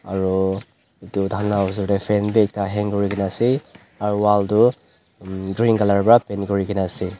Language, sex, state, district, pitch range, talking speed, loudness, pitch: Nagamese, male, Nagaland, Dimapur, 95-105 Hz, 175 wpm, -20 LUFS, 100 Hz